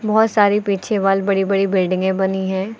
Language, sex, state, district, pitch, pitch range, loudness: Hindi, female, Uttar Pradesh, Lucknow, 195 Hz, 190-205 Hz, -17 LUFS